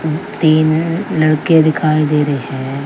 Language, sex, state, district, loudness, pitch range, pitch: Hindi, female, Haryana, Jhajjar, -14 LUFS, 150-160 Hz, 155 Hz